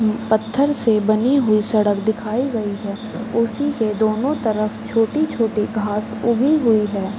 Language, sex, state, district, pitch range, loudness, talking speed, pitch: Hindi, female, Uttar Pradesh, Varanasi, 215-235 Hz, -19 LUFS, 150 wpm, 220 Hz